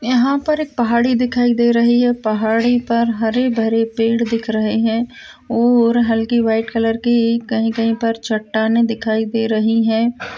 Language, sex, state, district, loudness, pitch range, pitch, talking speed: Hindi, female, Bihar, Purnia, -16 LUFS, 225-240 Hz, 230 Hz, 155 wpm